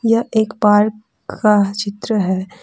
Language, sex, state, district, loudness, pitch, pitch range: Hindi, female, Jharkhand, Deoghar, -16 LUFS, 210 Hz, 200-220 Hz